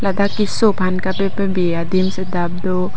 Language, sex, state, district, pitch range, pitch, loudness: Karbi, female, Assam, Karbi Anglong, 185-195 Hz, 185 Hz, -19 LUFS